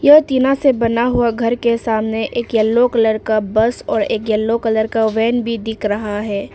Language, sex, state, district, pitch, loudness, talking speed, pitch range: Hindi, female, Arunachal Pradesh, Papum Pare, 225 Hz, -16 LUFS, 210 wpm, 220-240 Hz